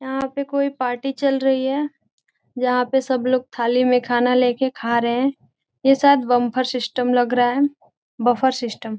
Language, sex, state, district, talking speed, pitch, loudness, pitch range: Hindi, female, Bihar, Gopalganj, 185 wpm, 255 Hz, -20 LUFS, 245-270 Hz